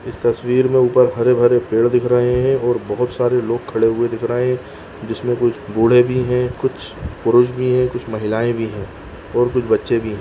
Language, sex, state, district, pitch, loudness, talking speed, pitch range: Hindi, male, Bihar, Jahanabad, 120 Hz, -17 LUFS, 210 wpm, 115-125 Hz